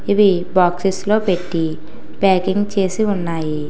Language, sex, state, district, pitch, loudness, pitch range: Telugu, female, Telangana, Hyderabad, 185 Hz, -18 LUFS, 170-200 Hz